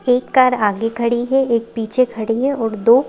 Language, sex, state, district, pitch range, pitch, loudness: Hindi, female, Madhya Pradesh, Bhopal, 225-255 Hz, 235 Hz, -17 LUFS